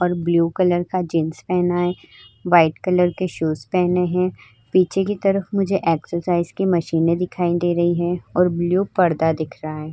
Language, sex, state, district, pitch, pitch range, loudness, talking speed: Hindi, female, Uttar Pradesh, Hamirpur, 175 Hz, 165-180 Hz, -20 LUFS, 180 wpm